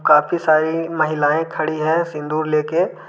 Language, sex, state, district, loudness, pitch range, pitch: Hindi, male, Jharkhand, Deoghar, -18 LUFS, 155-165 Hz, 155 Hz